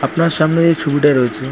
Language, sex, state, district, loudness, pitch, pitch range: Bengali, female, West Bengal, North 24 Parganas, -14 LUFS, 150 Hz, 140-165 Hz